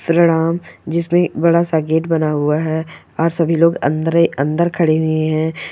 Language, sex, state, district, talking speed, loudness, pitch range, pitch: Angika, male, Bihar, Samastipur, 170 wpm, -16 LUFS, 155-170 Hz, 165 Hz